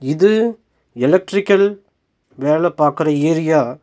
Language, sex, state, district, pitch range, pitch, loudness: Tamil, male, Tamil Nadu, Nilgiris, 150-200 Hz, 160 Hz, -16 LUFS